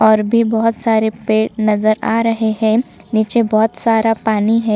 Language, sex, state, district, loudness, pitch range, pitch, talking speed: Hindi, female, Chhattisgarh, Sukma, -15 LUFS, 220-230 Hz, 220 Hz, 190 wpm